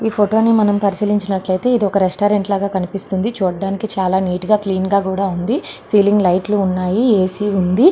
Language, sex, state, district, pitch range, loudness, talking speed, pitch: Telugu, female, Andhra Pradesh, Srikakulam, 190-210 Hz, -16 LUFS, 175 wpm, 200 Hz